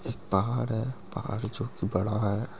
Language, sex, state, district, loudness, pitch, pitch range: Angika, male, Bihar, Madhepura, -30 LUFS, 110 Hz, 100-120 Hz